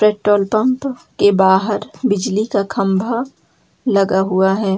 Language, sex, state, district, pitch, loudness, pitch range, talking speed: Hindi, female, Jharkhand, Jamtara, 205 Hz, -16 LUFS, 195-225 Hz, 125 wpm